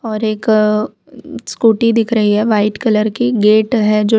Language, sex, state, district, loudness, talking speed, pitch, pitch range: Hindi, female, Gujarat, Valsad, -13 LUFS, 200 wpm, 220 Hz, 215-225 Hz